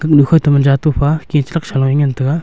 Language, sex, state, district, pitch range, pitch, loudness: Wancho, male, Arunachal Pradesh, Longding, 140-155 Hz, 145 Hz, -13 LUFS